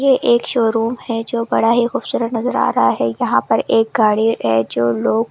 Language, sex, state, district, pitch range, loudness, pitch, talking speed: Hindi, female, Delhi, New Delhi, 210-235 Hz, -16 LUFS, 225 Hz, 250 wpm